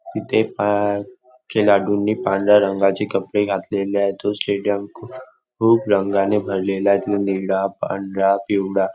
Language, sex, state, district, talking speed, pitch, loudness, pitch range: Marathi, male, Maharashtra, Nagpur, 135 wpm, 100 Hz, -19 LUFS, 95-105 Hz